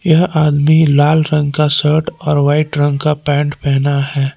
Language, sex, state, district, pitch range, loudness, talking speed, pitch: Hindi, male, Jharkhand, Palamu, 145-155 Hz, -13 LUFS, 180 wpm, 150 Hz